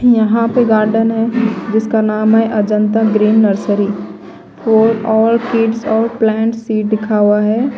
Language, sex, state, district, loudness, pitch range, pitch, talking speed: Hindi, female, Delhi, New Delhi, -13 LUFS, 215-225 Hz, 220 Hz, 145 wpm